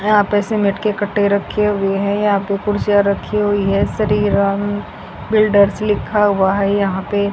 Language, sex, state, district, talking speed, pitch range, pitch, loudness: Hindi, female, Haryana, Jhajjar, 180 wpm, 200-210 Hz, 205 Hz, -16 LUFS